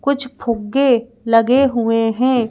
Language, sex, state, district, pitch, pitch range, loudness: Hindi, female, Madhya Pradesh, Bhopal, 240 Hz, 230-260 Hz, -16 LUFS